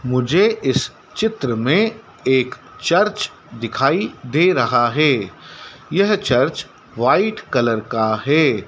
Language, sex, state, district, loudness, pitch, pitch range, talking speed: Hindi, male, Madhya Pradesh, Dhar, -18 LUFS, 140 Hz, 125-205 Hz, 110 wpm